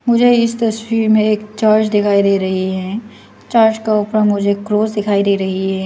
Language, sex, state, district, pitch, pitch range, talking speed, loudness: Hindi, female, Arunachal Pradesh, Lower Dibang Valley, 215 Hz, 200-220 Hz, 195 wpm, -15 LUFS